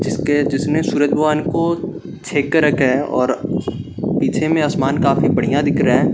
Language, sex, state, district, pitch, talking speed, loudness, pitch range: Hindi, male, Bihar, Gaya, 150 Hz, 165 wpm, -17 LUFS, 140-160 Hz